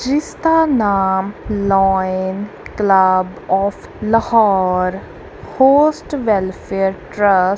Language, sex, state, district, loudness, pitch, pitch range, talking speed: Punjabi, female, Punjab, Kapurthala, -16 LUFS, 200 Hz, 190-225 Hz, 80 wpm